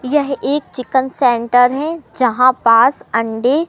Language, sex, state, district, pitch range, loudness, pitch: Hindi, male, Madhya Pradesh, Katni, 245-285 Hz, -15 LUFS, 255 Hz